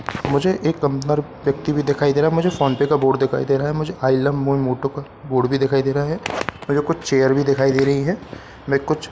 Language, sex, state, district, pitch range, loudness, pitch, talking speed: Hindi, male, Bihar, Katihar, 135-150 Hz, -19 LUFS, 140 Hz, 265 wpm